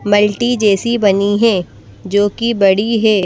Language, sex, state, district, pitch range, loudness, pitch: Hindi, female, Madhya Pradesh, Bhopal, 195-225 Hz, -14 LUFS, 205 Hz